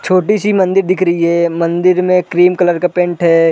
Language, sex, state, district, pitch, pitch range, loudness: Hindi, male, Chhattisgarh, Raigarh, 180 Hz, 170-185 Hz, -12 LUFS